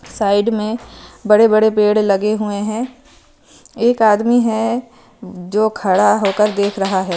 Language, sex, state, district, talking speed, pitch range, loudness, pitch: Hindi, female, Himachal Pradesh, Shimla, 140 wpm, 200-225 Hz, -15 LUFS, 215 Hz